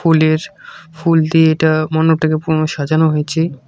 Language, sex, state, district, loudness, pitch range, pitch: Bengali, male, West Bengal, Cooch Behar, -14 LUFS, 155-160 Hz, 160 Hz